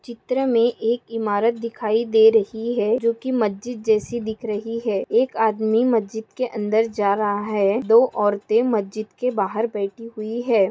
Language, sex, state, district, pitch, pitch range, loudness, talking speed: Hindi, female, Maharashtra, Pune, 225 Hz, 215-235 Hz, -21 LUFS, 175 wpm